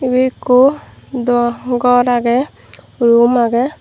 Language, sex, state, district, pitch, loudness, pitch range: Chakma, female, Tripura, Dhalai, 245 Hz, -13 LUFS, 240-255 Hz